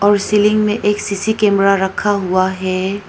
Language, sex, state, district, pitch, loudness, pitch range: Hindi, female, Arunachal Pradesh, Papum Pare, 200 Hz, -15 LUFS, 190-210 Hz